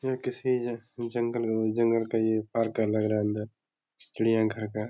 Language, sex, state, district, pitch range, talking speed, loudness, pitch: Hindi, male, Bihar, Darbhanga, 110-120 Hz, 195 wpm, -28 LUFS, 115 Hz